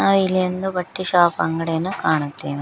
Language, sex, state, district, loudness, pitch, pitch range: Kannada, female, Karnataka, Koppal, -20 LUFS, 180 Hz, 160-185 Hz